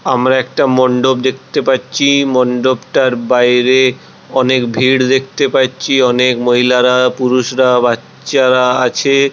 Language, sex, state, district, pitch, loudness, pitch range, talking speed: Bengali, male, West Bengal, Purulia, 130 Hz, -12 LUFS, 125-130 Hz, 105 wpm